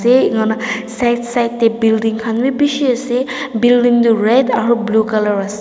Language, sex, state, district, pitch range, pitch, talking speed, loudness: Nagamese, female, Nagaland, Dimapur, 225-250 Hz, 235 Hz, 195 wpm, -14 LUFS